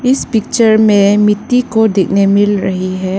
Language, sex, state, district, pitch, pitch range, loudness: Hindi, female, Arunachal Pradesh, Lower Dibang Valley, 205 Hz, 195-220 Hz, -11 LUFS